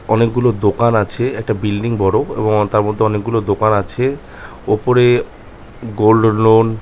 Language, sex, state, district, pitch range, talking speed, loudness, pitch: Bengali, male, West Bengal, North 24 Parganas, 105-115 Hz, 150 wpm, -15 LUFS, 110 Hz